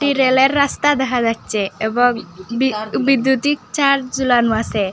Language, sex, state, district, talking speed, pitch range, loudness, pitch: Bengali, female, Assam, Hailakandi, 120 wpm, 225-275 Hz, -17 LUFS, 255 Hz